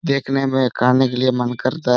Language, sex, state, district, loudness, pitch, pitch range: Hindi, male, Jharkhand, Sahebganj, -18 LUFS, 130 Hz, 125-135 Hz